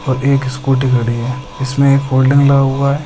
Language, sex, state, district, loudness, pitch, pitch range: Hindi, male, Maharashtra, Dhule, -14 LUFS, 135 Hz, 130-140 Hz